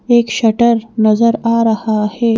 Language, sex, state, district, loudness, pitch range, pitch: Hindi, female, Madhya Pradesh, Bhopal, -13 LUFS, 220-235 Hz, 230 Hz